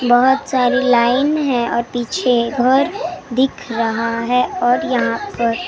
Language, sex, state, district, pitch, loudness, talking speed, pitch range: Hindi, female, Maharashtra, Gondia, 245 Hz, -17 LUFS, 135 wpm, 235-260 Hz